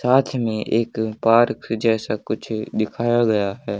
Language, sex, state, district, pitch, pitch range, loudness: Hindi, male, Haryana, Charkhi Dadri, 115 Hz, 110-120 Hz, -21 LUFS